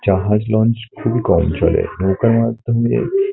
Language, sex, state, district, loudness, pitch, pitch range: Bengali, male, West Bengal, Kolkata, -16 LUFS, 115 Hz, 105-115 Hz